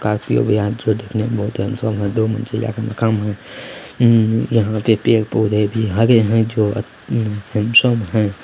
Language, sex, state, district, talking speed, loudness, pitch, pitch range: Hindi, male, Bihar, Lakhisarai, 185 wpm, -17 LUFS, 110 Hz, 105-115 Hz